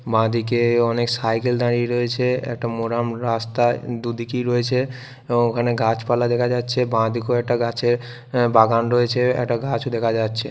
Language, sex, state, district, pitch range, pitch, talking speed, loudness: Bengali, male, West Bengal, Purulia, 115-120 Hz, 120 Hz, 150 wpm, -21 LUFS